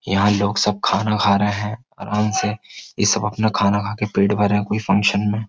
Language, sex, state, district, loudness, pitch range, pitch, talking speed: Hindi, male, Uttar Pradesh, Jyotiba Phule Nagar, -19 LUFS, 100-105 Hz, 105 Hz, 230 wpm